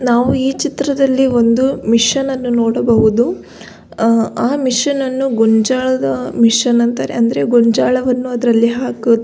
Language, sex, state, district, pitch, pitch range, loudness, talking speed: Kannada, female, Karnataka, Belgaum, 245 Hz, 230-265 Hz, -14 LUFS, 115 wpm